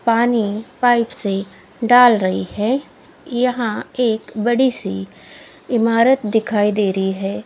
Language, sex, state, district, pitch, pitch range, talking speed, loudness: Hindi, female, Odisha, Khordha, 225 Hz, 195-240 Hz, 120 wpm, -18 LUFS